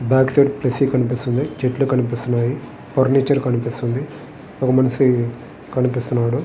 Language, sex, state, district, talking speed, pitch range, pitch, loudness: Telugu, male, Andhra Pradesh, Guntur, 100 wpm, 120-135 Hz, 130 Hz, -19 LUFS